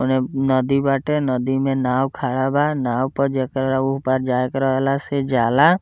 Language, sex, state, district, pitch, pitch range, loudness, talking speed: Bhojpuri, male, Bihar, Muzaffarpur, 135 Hz, 130-135 Hz, -20 LUFS, 185 wpm